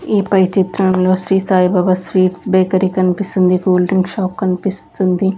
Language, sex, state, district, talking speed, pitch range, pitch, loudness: Telugu, female, Andhra Pradesh, Sri Satya Sai, 135 wpm, 185-190 Hz, 185 Hz, -15 LUFS